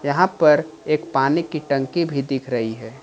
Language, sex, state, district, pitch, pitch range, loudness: Hindi, male, Jharkhand, Ranchi, 140 Hz, 135-155 Hz, -20 LUFS